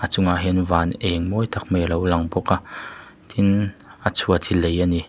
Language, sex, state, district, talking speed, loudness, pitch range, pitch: Mizo, male, Mizoram, Aizawl, 210 wpm, -21 LUFS, 85-100 Hz, 90 Hz